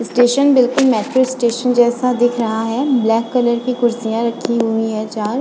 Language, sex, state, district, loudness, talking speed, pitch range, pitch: Hindi, female, Goa, North and South Goa, -16 LUFS, 190 wpm, 225-250 Hz, 240 Hz